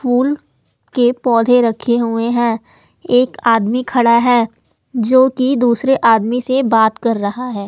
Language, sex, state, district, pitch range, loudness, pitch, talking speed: Hindi, female, Delhi, New Delhi, 230-250 Hz, -14 LUFS, 240 Hz, 140 wpm